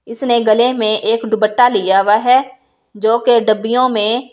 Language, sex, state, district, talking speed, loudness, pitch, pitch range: Hindi, female, Delhi, New Delhi, 150 wpm, -13 LUFS, 230 Hz, 215-245 Hz